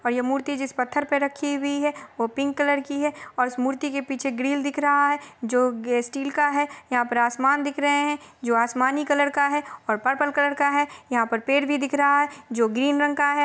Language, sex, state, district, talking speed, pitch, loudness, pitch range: Hindi, female, Chhattisgarh, Rajnandgaon, 245 wpm, 280 Hz, -23 LUFS, 250-290 Hz